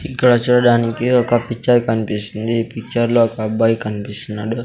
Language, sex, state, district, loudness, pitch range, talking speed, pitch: Telugu, male, Andhra Pradesh, Sri Satya Sai, -17 LUFS, 110-120 Hz, 130 wpm, 115 Hz